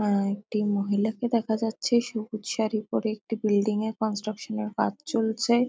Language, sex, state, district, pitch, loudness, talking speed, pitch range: Bengali, female, West Bengal, Kolkata, 220 Hz, -27 LUFS, 160 wpm, 210-225 Hz